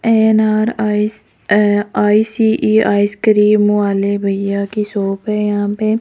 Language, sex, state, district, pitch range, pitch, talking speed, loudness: Hindi, female, Rajasthan, Jaipur, 205-215 Hz, 210 Hz, 120 wpm, -14 LUFS